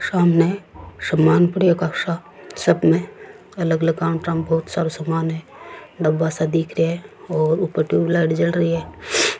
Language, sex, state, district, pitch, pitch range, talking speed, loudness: Rajasthani, female, Rajasthan, Churu, 165 Hz, 160-175 Hz, 165 wpm, -20 LUFS